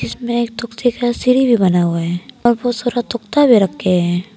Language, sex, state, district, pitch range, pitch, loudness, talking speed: Hindi, female, Arunachal Pradesh, Papum Pare, 185-245 Hz, 235 Hz, -16 LUFS, 190 wpm